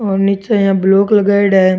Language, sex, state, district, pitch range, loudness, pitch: Rajasthani, male, Rajasthan, Churu, 195-200 Hz, -12 LUFS, 195 Hz